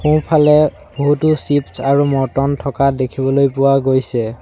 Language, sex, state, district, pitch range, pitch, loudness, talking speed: Assamese, male, Assam, Sonitpur, 135-145 Hz, 140 Hz, -15 LUFS, 135 wpm